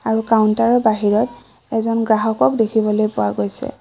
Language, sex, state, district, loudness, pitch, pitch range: Assamese, female, Assam, Kamrup Metropolitan, -17 LUFS, 220 Hz, 215-225 Hz